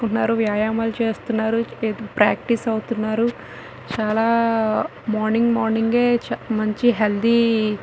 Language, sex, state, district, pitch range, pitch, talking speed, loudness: Telugu, female, Telangana, Nalgonda, 220-230 Hz, 225 Hz, 85 wpm, -20 LUFS